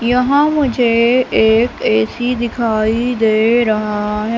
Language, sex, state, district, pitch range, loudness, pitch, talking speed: Hindi, female, Madhya Pradesh, Katni, 220-245 Hz, -14 LUFS, 235 Hz, 110 wpm